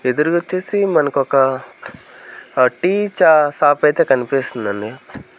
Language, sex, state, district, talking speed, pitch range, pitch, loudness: Telugu, male, Andhra Pradesh, Sri Satya Sai, 100 wpm, 130-170 Hz, 145 Hz, -16 LUFS